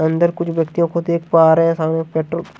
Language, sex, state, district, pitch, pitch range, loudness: Hindi, male, Haryana, Jhajjar, 165 Hz, 160-170 Hz, -17 LUFS